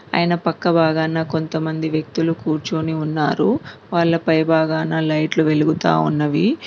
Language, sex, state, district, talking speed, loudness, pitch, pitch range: Telugu, female, Telangana, Mahabubabad, 115 wpm, -19 LUFS, 160 Hz, 155-165 Hz